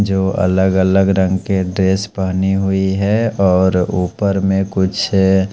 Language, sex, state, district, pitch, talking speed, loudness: Hindi, male, Punjab, Pathankot, 95 Hz, 140 wpm, -15 LUFS